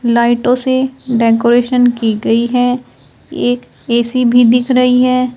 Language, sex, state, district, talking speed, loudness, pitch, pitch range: Hindi, female, Uttar Pradesh, Shamli, 135 wpm, -12 LUFS, 245 Hz, 235-255 Hz